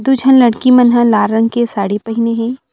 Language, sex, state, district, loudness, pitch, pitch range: Chhattisgarhi, female, Chhattisgarh, Rajnandgaon, -12 LUFS, 235 Hz, 225-250 Hz